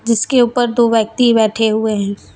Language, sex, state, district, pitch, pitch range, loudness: Hindi, female, Jharkhand, Deoghar, 230 Hz, 220-240 Hz, -14 LUFS